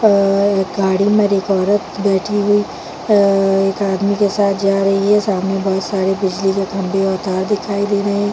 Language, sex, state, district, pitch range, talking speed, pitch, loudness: Hindi, female, Chhattisgarh, Bilaspur, 195-205 Hz, 200 wpm, 195 Hz, -16 LUFS